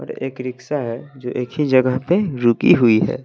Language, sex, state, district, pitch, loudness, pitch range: Hindi, male, Bihar, West Champaran, 130 Hz, -18 LUFS, 120-140 Hz